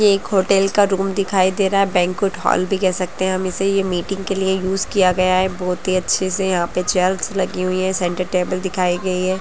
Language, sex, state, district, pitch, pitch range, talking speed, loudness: Hindi, female, Chhattisgarh, Bastar, 185 Hz, 185-195 Hz, 255 wpm, -18 LUFS